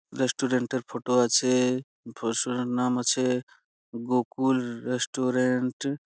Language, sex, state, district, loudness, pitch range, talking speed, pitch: Bengali, male, West Bengal, Purulia, -26 LUFS, 125-130 Hz, 90 wpm, 125 Hz